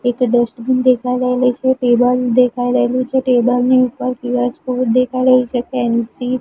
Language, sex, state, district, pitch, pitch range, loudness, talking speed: Gujarati, female, Gujarat, Gandhinagar, 250 Hz, 245-255 Hz, -15 LUFS, 150 wpm